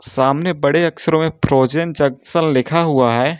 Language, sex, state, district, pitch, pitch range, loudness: Hindi, male, Uttar Pradesh, Lucknow, 150 Hz, 130-165 Hz, -16 LUFS